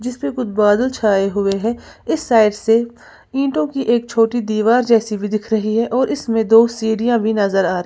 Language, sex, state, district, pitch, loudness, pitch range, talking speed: Hindi, female, Uttar Pradesh, Lalitpur, 225 Hz, -17 LUFS, 215-240 Hz, 200 wpm